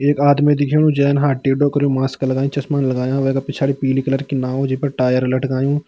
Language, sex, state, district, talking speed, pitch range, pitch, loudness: Hindi, male, Uttarakhand, Tehri Garhwal, 205 wpm, 130-145 Hz, 135 Hz, -17 LUFS